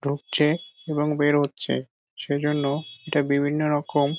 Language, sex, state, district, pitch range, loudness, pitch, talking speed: Bengali, male, West Bengal, Dakshin Dinajpur, 140-150 Hz, -24 LUFS, 145 Hz, 100 wpm